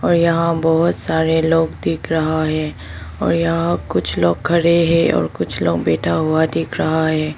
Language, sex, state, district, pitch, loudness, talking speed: Hindi, female, Arunachal Pradesh, Papum Pare, 155 Hz, -17 LUFS, 180 wpm